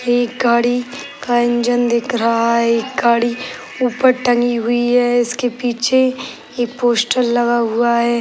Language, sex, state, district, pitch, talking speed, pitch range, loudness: Hindi, female, Uttar Pradesh, Gorakhpur, 240 Hz, 145 wpm, 235-245 Hz, -16 LUFS